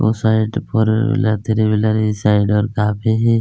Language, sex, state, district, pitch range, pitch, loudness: Hindi, male, Chhattisgarh, Kabirdham, 105-110 Hz, 110 Hz, -16 LUFS